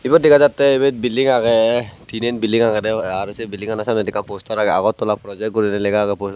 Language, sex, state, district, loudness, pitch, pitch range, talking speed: Chakma, male, Tripura, Dhalai, -17 LUFS, 110 Hz, 105-125 Hz, 210 wpm